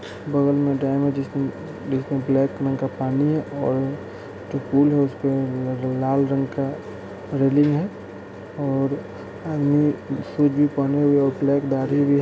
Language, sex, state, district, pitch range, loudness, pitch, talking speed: Hindi, male, Bihar, Sitamarhi, 135-145 Hz, -22 LUFS, 140 Hz, 150 wpm